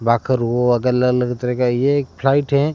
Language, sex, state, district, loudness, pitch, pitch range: Hindi, male, Rajasthan, Jaisalmer, -18 LUFS, 125 Hz, 125-135 Hz